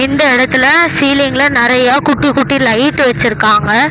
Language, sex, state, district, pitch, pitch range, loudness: Tamil, female, Tamil Nadu, Namakkal, 270 Hz, 250-285 Hz, -9 LUFS